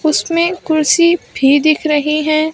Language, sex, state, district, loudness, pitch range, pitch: Hindi, female, Maharashtra, Mumbai Suburban, -13 LUFS, 300-335 Hz, 310 Hz